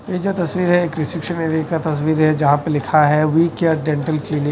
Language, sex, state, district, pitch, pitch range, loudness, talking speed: Hindi, male, Odisha, Nuapada, 155 Hz, 155-170 Hz, -18 LUFS, 250 wpm